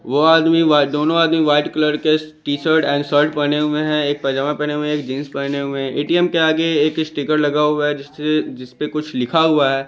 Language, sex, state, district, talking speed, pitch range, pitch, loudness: Hindi, male, Chandigarh, Chandigarh, 230 wpm, 145-155 Hz, 150 Hz, -17 LUFS